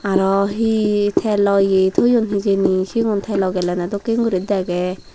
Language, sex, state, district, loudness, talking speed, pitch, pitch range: Chakma, female, Tripura, Dhalai, -18 LUFS, 140 wpm, 200 Hz, 190-210 Hz